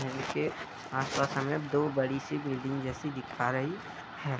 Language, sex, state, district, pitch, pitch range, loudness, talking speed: Hindi, male, Uttar Pradesh, Budaun, 135 Hz, 130-145 Hz, -33 LUFS, 175 wpm